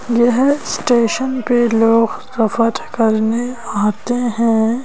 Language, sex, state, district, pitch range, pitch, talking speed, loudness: Hindi, female, Madhya Pradesh, Bhopal, 225-245 Hz, 235 Hz, 85 wpm, -16 LUFS